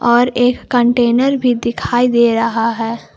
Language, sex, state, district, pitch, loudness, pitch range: Hindi, female, Jharkhand, Palamu, 240 Hz, -14 LUFS, 235-245 Hz